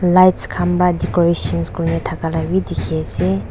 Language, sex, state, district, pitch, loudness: Nagamese, female, Nagaland, Dimapur, 160 Hz, -17 LUFS